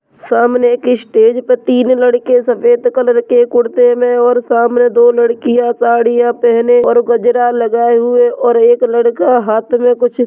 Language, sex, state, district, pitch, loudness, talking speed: Hindi, male, Bihar, Jamui, 245 Hz, -11 LUFS, 165 wpm